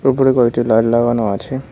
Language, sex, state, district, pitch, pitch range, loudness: Bengali, male, West Bengal, Cooch Behar, 120 Hz, 115-130 Hz, -15 LUFS